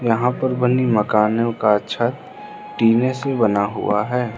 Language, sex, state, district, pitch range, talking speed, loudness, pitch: Hindi, male, Arunachal Pradesh, Lower Dibang Valley, 110-130 Hz, 150 wpm, -19 LUFS, 120 Hz